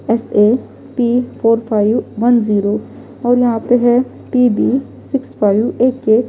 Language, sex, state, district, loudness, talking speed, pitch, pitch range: Hindi, female, Delhi, New Delhi, -15 LUFS, 145 wpm, 240 Hz, 220-250 Hz